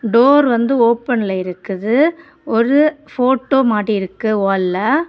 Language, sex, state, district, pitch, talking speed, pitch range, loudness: Tamil, female, Tamil Nadu, Kanyakumari, 235 Hz, 105 wpm, 210-270 Hz, -15 LUFS